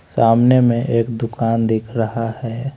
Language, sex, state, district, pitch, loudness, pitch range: Hindi, male, Haryana, Rohtak, 115 Hz, -17 LUFS, 115-120 Hz